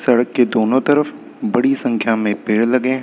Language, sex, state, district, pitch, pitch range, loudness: Hindi, male, Uttar Pradesh, Lucknow, 125 Hz, 115-130 Hz, -17 LUFS